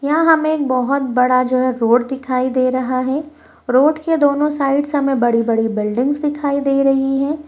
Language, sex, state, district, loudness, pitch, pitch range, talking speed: Hindi, female, Uttar Pradesh, Hamirpur, -16 LUFS, 270 Hz, 255-290 Hz, 185 wpm